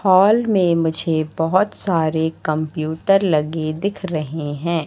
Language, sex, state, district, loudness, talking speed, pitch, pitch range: Hindi, female, Madhya Pradesh, Katni, -19 LUFS, 125 wpm, 160 Hz, 155-190 Hz